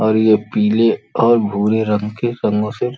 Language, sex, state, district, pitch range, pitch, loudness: Hindi, male, Uttar Pradesh, Gorakhpur, 105-115 Hz, 110 Hz, -16 LUFS